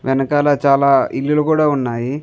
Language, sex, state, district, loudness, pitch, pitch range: Telugu, male, Andhra Pradesh, Chittoor, -15 LUFS, 140 Hz, 135-150 Hz